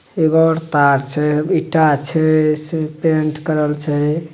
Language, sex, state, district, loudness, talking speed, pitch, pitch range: Maithili, male, Bihar, Madhepura, -16 LUFS, 125 wpm, 155 Hz, 150-160 Hz